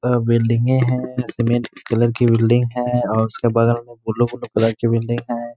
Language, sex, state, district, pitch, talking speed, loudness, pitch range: Hindi, male, Bihar, Gaya, 120 Hz, 170 wpm, -19 LUFS, 115-120 Hz